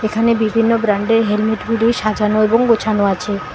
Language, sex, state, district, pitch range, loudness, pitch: Bengali, female, West Bengal, Alipurduar, 210-230 Hz, -15 LUFS, 215 Hz